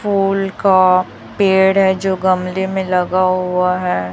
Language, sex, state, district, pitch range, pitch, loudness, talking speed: Hindi, female, Chhattisgarh, Raipur, 185-195 Hz, 190 Hz, -15 LUFS, 145 wpm